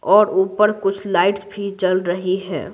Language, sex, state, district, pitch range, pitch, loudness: Hindi, female, Bihar, Patna, 185-205 Hz, 195 Hz, -19 LUFS